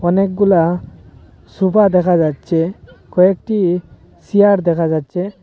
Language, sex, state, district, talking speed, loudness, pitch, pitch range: Bengali, male, Assam, Hailakandi, 90 wpm, -15 LUFS, 180 Hz, 170-195 Hz